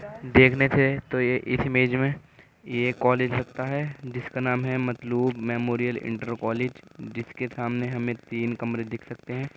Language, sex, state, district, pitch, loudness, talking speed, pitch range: Hindi, male, Uttar Pradesh, Jyotiba Phule Nagar, 125 Hz, -25 LUFS, 175 wpm, 120-130 Hz